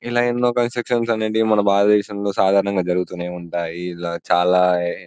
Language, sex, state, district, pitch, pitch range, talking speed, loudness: Telugu, male, Telangana, Karimnagar, 100 Hz, 90-110 Hz, 140 wpm, -19 LUFS